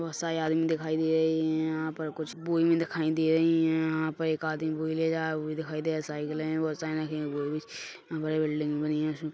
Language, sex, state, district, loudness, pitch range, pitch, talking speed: Hindi, male, Chhattisgarh, Kabirdham, -29 LUFS, 155-160 Hz, 160 Hz, 250 wpm